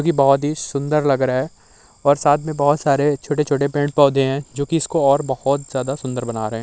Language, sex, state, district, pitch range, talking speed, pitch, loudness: Hindi, male, Uttar Pradesh, Muzaffarnagar, 135-145 Hz, 215 wpm, 140 Hz, -19 LUFS